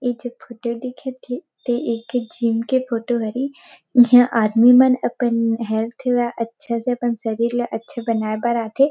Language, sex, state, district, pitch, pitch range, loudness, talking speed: Chhattisgarhi, female, Chhattisgarh, Rajnandgaon, 240 Hz, 230-250 Hz, -20 LUFS, 175 wpm